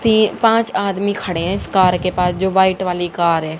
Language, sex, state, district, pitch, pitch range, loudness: Hindi, female, Haryana, Jhajjar, 190 Hz, 180-200 Hz, -16 LUFS